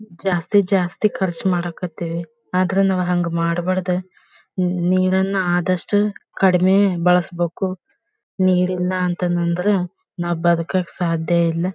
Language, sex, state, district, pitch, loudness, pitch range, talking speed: Kannada, female, Karnataka, Bellary, 180 Hz, -20 LUFS, 175-190 Hz, 105 wpm